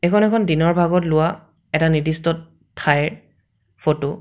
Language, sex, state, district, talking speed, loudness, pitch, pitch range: Assamese, male, Assam, Sonitpur, 145 wpm, -19 LUFS, 160 Hz, 150-170 Hz